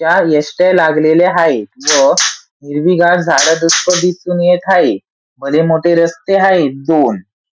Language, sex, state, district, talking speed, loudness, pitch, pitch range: Marathi, male, Maharashtra, Sindhudurg, 120 wpm, -11 LUFS, 165 Hz, 150-180 Hz